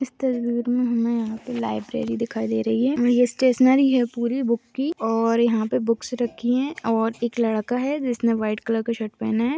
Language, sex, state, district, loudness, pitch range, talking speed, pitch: Hindi, female, Uttar Pradesh, Deoria, -22 LUFS, 225-250 Hz, 215 wpm, 235 Hz